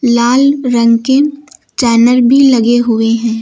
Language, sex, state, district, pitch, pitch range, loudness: Hindi, female, Uttar Pradesh, Lucknow, 240 Hz, 230-270 Hz, -10 LUFS